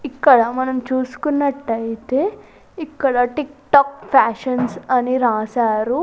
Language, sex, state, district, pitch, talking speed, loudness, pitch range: Telugu, female, Andhra Pradesh, Sri Satya Sai, 255 Hz, 90 wpm, -18 LUFS, 240-280 Hz